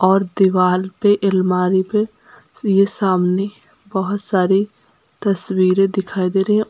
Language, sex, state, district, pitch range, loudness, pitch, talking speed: Hindi, female, Uttar Pradesh, Lucknow, 185-205 Hz, -17 LUFS, 195 Hz, 125 wpm